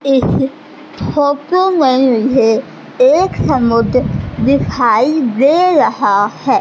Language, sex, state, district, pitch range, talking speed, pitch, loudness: Hindi, female, Madhya Pradesh, Katni, 245-300 Hz, 90 wpm, 270 Hz, -13 LUFS